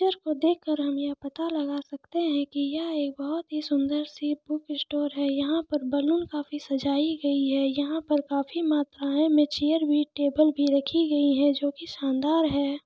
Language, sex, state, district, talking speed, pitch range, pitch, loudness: Hindi, male, Jharkhand, Sahebganj, 200 wpm, 280-310 Hz, 295 Hz, -26 LUFS